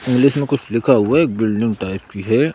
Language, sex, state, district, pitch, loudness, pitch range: Hindi, male, Madhya Pradesh, Bhopal, 115 Hz, -17 LUFS, 105-140 Hz